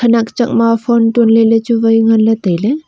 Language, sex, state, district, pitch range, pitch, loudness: Wancho, female, Arunachal Pradesh, Longding, 225-235 Hz, 230 Hz, -11 LUFS